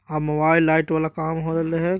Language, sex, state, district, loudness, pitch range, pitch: Magahi, male, Bihar, Jahanabad, -21 LUFS, 160-165 Hz, 160 Hz